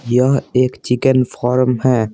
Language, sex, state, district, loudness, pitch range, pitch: Hindi, male, Bihar, Patna, -16 LUFS, 125-130 Hz, 125 Hz